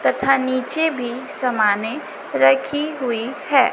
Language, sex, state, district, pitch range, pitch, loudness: Hindi, female, Chhattisgarh, Raipur, 225-275 Hz, 255 Hz, -19 LUFS